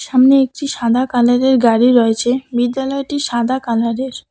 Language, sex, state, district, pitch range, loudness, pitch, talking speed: Bengali, female, West Bengal, Cooch Behar, 240-265 Hz, -15 LUFS, 250 Hz, 140 wpm